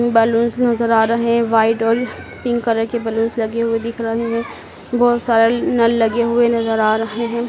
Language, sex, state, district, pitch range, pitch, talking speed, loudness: Hindi, female, Madhya Pradesh, Dhar, 225-235 Hz, 230 Hz, 200 wpm, -17 LUFS